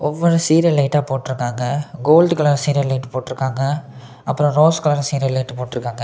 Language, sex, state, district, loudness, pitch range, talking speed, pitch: Tamil, male, Tamil Nadu, Kanyakumari, -18 LUFS, 130-150 Hz, 140 wpm, 140 Hz